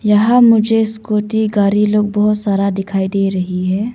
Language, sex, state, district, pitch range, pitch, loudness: Hindi, female, Arunachal Pradesh, Longding, 195-220 Hz, 210 Hz, -14 LUFS